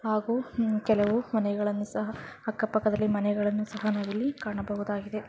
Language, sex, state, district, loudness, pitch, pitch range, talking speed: Kannada, female, Karnataka, Chamarajanagar, -29 LUFS, 215 Hz, 205-220 Hz, 125 wpm